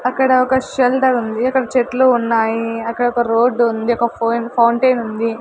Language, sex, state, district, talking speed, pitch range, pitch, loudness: Telugu, female, Andhra Pradesh, Sri Satya Sai, 165 wpm, 230-255 Hz, 240 Hz, -16 LUFS